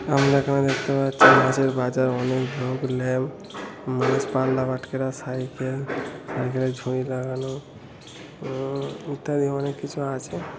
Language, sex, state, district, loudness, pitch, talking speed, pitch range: Bengali, male, West Bengal, North 24 Parganas, -24 LUFS, 130 Hz, 120 wpm, 130-140 Hz